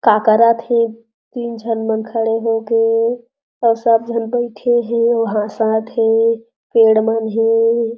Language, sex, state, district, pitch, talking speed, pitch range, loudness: Chhattisgarhi, female, Chhattisgarh, Jashpur, 230 Hz, 150 wpm, 225-235 Hz, -16 LUFS